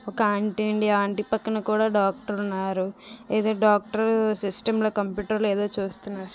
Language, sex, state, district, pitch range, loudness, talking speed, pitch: Telugu, female, Andhra Pradesh, Visakhapatnam, 200-215 Hz, -25 LUFS, 130 wpm, 210 Hz